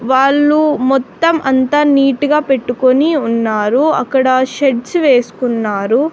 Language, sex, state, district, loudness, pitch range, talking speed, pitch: Telugu, female, Andhra Pradesh, Sri Satya Sai, -13 LUFS, 245-290 Hz, 100 wpm, 265 Hz